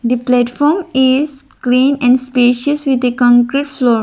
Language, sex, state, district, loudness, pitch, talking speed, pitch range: English, female, Arunachal Pradesh, Lower Dibang Valley, -13 LUFS, 255 Hz, 150 wpm, 245-280 Hz